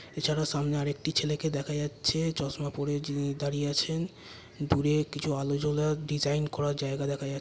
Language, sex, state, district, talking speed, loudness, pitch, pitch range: Bengali, male, West Bengal, Purulia, 145 wpm, -30 LUFS, 145 Hz, 145-150 Hz